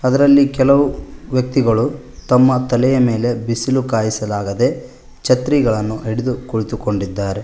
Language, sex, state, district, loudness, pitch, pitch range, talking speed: Kannada, male, Karnataka, Koppal, -16 LUFS, 125 Hz, 110-130 Hz, 90 wpm